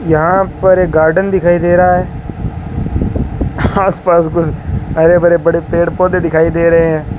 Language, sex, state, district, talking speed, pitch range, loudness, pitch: Hindi, male, Rajasthan, Bikaner, 160 wpm, 160-180 Hz, -12 LUFS, 170 Hz